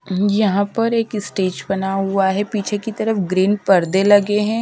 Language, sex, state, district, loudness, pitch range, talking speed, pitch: Hindi, female, Haryana, Rohtak, -18 LUFS, 190-210 Hz, 180 wpm, 200 Hz